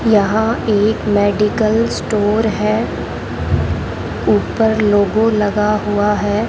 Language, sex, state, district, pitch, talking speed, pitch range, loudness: Hindi, male, Rajasthan, Bikaner, 210 Hz, 90 wpm, 205-220 Hz, -16 LUFS